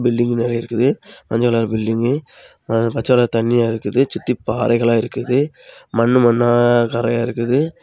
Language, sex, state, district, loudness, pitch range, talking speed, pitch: Tamil, male, Tamil Nadu, Kanyakumari, -17 LUFS, 115-125 Hz, 130 wpm, 120 Hz